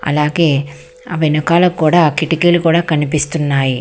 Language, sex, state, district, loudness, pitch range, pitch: Telugu, female, Telangana, Hyderabad, -14 LUFS, 150-170 Hz, 155 Hz